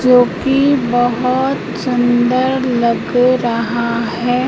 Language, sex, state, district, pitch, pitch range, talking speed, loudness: Hindi, female, Madhya Pradesh, Katni, 245 Hz, 240-255 Hz, 95 wpm, -15 LUFS